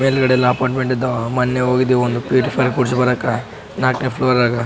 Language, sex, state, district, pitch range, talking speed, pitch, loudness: Kannada, male, Karnataka, Raichur, 125-130 Hz, 165 wpm, 125 Hz, -17 LUFS